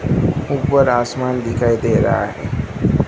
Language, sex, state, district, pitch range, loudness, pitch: Hindi, male, Gujarat, Gandhinagar, 120-140 Hz, -17 LUFS, 125 Hz